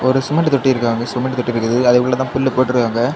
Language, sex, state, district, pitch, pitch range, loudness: Tamil, male, Tamil Nadu, Kanyakumari, 125 Hz, 120-130 Hz, -16 LUFS